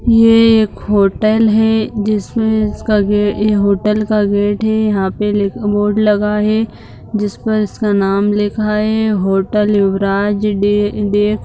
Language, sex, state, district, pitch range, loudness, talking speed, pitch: Hindi, female, Bihar, Begusarai, 205-215 Hz, -14 LUFS, 135 wpm, 210 Hz